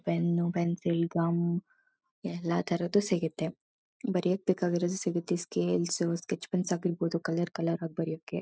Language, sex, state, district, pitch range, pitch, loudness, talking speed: Kannada, female, Karnataka, Mysore, 170-180 Hz, 170 Hz, -31 LUFS, 120 wpm